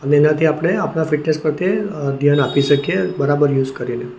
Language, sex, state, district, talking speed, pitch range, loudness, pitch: Gujarati, male, Gujarat, Valsad, 170 wpm, 140-165 Hz, -17 LUFS, 145 Hz